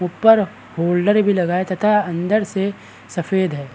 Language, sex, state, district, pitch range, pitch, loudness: Hindi, male, Chhattisgarh, Balrampur, 175-205 Hz, 190 Hz, -18 LUFS